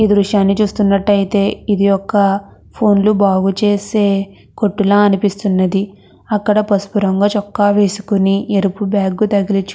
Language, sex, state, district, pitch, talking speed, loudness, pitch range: Telugu, female, Andhra Pradesh, Krishna, 200 Hz, 135 wpm, -14 LUFS, 195-205 Hz